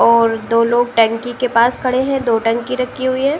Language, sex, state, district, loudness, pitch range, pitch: Hindi, female, Uttar Pradesh, Jalaun, -16 LUFS, 230-255 Hz, 240 Hz